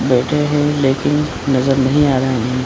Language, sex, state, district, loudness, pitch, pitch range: Hindi, male, Bihar, Supaul, -15 LUFS, 135 Hz, 130-145 Hz